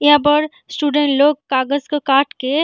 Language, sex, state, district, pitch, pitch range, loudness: Hindi, female, Bihar, Gaya, 290 Hz, 280-295 Hz, -16 LUFS